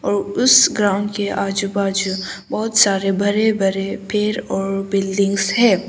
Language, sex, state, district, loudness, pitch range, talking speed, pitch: Hindi, female, Arunachal Pradesh, Papum Pare, -17 LUFS, 195-210 Hz, 145 wpm, 200 Hz